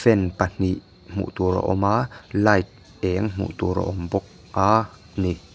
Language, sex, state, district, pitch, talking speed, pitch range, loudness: Mizo, male, Mizoram, Aizawl, 95 Hz, 175 wpm, 90-105 Hz, -23 LUFS